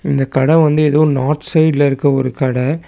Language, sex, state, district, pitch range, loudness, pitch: Tamil, male, Tamil Nadu, Chennai, 135-155 Hz, -14 LUFS, 145 Hz